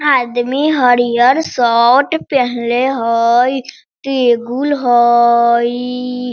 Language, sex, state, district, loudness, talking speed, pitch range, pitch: Hindi, female, Bihar, Sitamarhi, -13 LUFS, 65 wpm, 240-265 Hz, 245 Hz